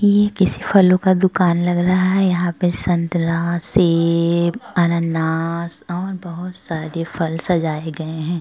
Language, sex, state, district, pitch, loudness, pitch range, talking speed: Hindi, female, Uttar Pradesh, Budaun, 170 Hz, -18 LUFS, 165-185 Hz, 145 wpm